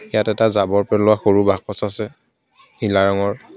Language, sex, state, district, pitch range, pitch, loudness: Assamese, male, Assam, Kamrup Metropolitan, 100-110 Hz, 105 Hz, -18 LUFS